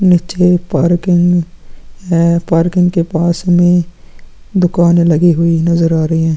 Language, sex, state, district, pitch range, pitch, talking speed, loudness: Hindi, male, Chhattisgarh, Sukma, 165-175 Hz, 170 Hz, 130 wpm, -12 LUFS